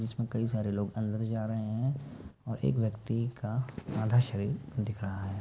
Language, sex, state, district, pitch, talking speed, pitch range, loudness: Hindi, male, Uttar Pradesh, Ghazipur, 110 Hz, 190 wpm, 105-120 Hz, -33 LUFS